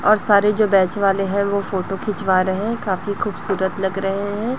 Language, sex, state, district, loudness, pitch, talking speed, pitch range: Hindi, female, Chhattisgarh, Raipur, -19 LUFS, 200 Hz, 210 wpm, 190-205 Hz